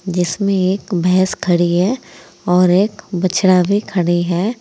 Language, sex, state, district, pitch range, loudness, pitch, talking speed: Hindi, female, Uttar Pradesh, Saharanpur, 180-200 Hz, -16 LUFS, 185 Hz, 145 wpm